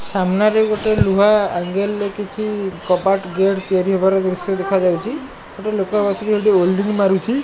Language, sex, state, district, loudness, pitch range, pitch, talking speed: Odia, male, Odisha, Malkangiri, -17 LUFS, 190-210 Hz, 195 Hz, 135 wpm